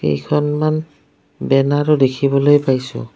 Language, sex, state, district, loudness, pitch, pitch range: Assamese, female, Assam, Kamrup Metropolitan, -16 LUFS, 145 Hz, 130-150 Hz